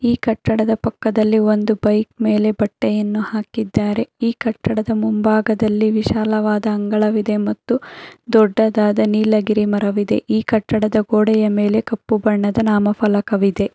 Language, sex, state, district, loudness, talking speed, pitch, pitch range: Kannada, female, Karnataka, Bangalore, -17 LUFS, 105 wpm, 215 Hz, 210-220 Hz